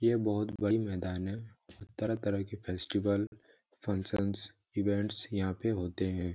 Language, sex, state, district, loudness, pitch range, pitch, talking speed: Hindi, male, Jharkhand, Jamtara, -34 LUFS, 95-105 Hz, 100 Hz, 130 wpm